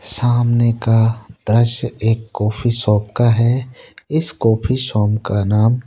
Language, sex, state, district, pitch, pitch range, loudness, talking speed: Hindi, male, Rajasthan, Jaipur, 115 Hz, 110-120 Hz, -16 LUFS, 135 wpm